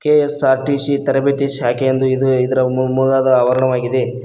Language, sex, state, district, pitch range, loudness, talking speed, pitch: Kannada, male, Karnataka, Koppal, 130-140 Hz, -15 LUFS, 115 wpm, 130 Hz